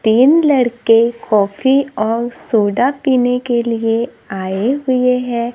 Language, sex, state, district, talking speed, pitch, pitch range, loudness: Hindi, female, Maharashtra, Gondia, 120 wpm, 240 Hz, 225-255 Hz, -15 LUFS